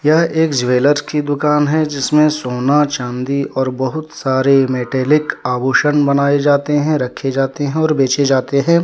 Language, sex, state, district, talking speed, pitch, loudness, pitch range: Hindi, male, Jharkhand, Deoghar, 165 wpm, 140 Hz, -15 LUFS, 135-150 Hz